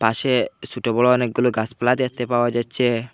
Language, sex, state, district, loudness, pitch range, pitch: Bengali, male, Assam, Hailakandi, -20 LUFS, 120-125 Hz, 120 Hz